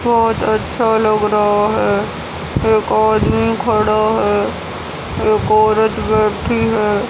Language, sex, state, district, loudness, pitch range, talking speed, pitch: Hindi, female, Haryana, Rohtak, -15 LUFS, 215-220 Hz, 40 wpm, 215 Hz